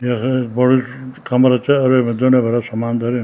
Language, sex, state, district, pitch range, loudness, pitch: Garhwali, male, Uttarakhand, Tehri Garhwal, 120-130 Hz, -16 LUFS, 125 Hz